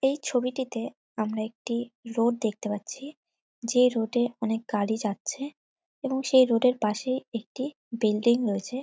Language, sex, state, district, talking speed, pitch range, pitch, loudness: Bengali, female, West Bengal, North 24 Parganas, 150 wpm, 225-265 Hz, 240 Hz, -27 LUFS